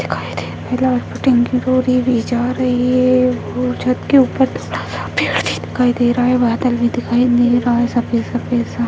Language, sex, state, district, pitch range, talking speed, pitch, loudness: Hindi, female, Bihar, Jamui, 235-250 Hz, 155 wpm, 245 Hz, -16 LUFS